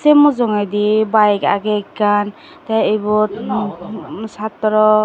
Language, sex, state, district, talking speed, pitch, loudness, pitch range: Chakma, female, Tripura, Dhalai, 105 wpm, 215 Hz, -16 LUFS, 210-220 Hz